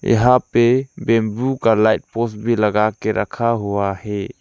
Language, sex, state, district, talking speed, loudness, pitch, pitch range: Hindi, male, Arunachal Pradesh, Lower Dibang Valley, 165 wpm, -18 LUFS, 115 Hz, 105-120 Hz